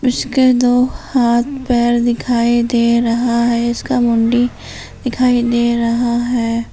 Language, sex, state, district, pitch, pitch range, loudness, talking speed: Hindi, female, Jharkhand, Palamu, 240 Hz, 235-245 Hz, -15 LUFS, 125 wpm